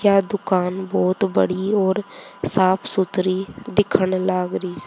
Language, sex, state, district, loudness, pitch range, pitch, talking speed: Hindi, female, Haryana, Charkhi Dadri, -20 LUFS, 185-195 Hz, 190 Hz, 85 wpm